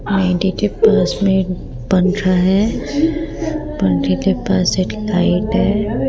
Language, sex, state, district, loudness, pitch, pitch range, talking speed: Hindi, female, Rajasthan, Jaipur, -16 LUFS, 190 Hz, 180-210 Hz, 120 wpm